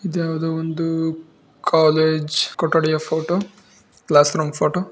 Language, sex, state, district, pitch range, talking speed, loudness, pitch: Kannada, female, Karnataka, Bijapur, 155-165 Hz, 110 wpm, -19 LUFS, 160 Hz